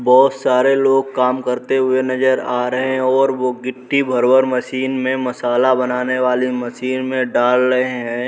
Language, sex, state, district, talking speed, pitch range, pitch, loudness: Hindi, male, Uttar Pradesh, Muzaffarnagar, 175 wpm, 125-130 Hz, 130 Hz, -17 LUFS